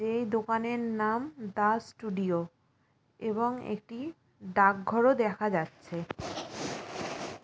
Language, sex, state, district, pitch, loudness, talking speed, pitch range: Bengali, female, West Bengal, Jalpaiguri, 215 Hz, -31 LUFS, 105 wpm, 190-230 Hz